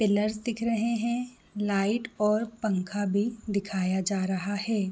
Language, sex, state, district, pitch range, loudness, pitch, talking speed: Hindi, female, Chhattisgarh, Raigarh, 200-230 Hz, -29 LUFS, 210 Hz, 145 wpm